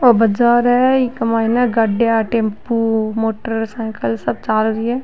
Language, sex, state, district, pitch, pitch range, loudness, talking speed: Rajasthani, female, Rajasthan, Nagaur, 225 Hz, 220-240 Hz, -16 LUFS, 155 wpm